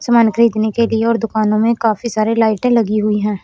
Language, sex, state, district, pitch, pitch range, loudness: Hindi, female, Haryana, Rohtak, 225 Hz, 215-230 Hz, -15 LUFS